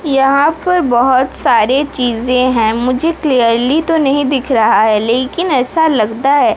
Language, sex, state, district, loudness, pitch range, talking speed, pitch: Hindi, female, Odisha, Sambalpur, -12 LUFS, 240-295 Hz, 155 wpm, 260 Hz